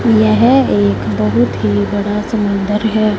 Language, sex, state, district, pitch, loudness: Hindi, female, Punjab, Fazilka, 205 Hz, -13 LUFS